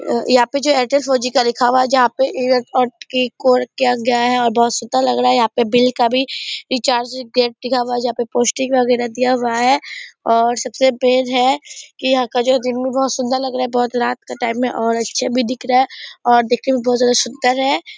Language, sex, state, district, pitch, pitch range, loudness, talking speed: Hindi, female, Bihar, Purnia, 250 Hz, 245-260 Hz, -16 LUFS, 235 wpm